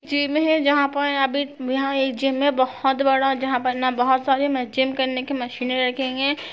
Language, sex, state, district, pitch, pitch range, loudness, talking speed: Hindi, female, Chhattisgarh, Sarguja, 270 Hz, 255-280 Hz, -21 LUFS, 195 wpm